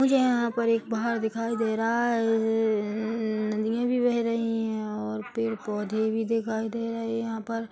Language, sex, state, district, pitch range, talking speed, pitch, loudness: Hindi, female, Chhattisgarh, Bilaspur, 220-230 Hz, 185 wpm, 225 Hz, -27 LUFS